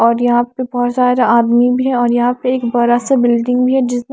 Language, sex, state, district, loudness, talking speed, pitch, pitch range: Hindi, female, Maharashtra, Mumbai Suburban, -14 LUFS, 275 wpm, 245 Hz, 240-250 Hz